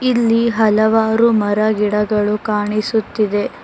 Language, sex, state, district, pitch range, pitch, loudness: Kannada, female, Karnataka, Bangalore, 210-225 Hz, 215 Hz, -16 LUFS